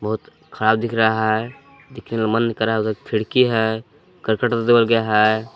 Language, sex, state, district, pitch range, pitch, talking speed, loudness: Hindi, male, Jharkhand, Palamu, 110-115 Hz, 110 Hz, 120 wpm, -19 LUFS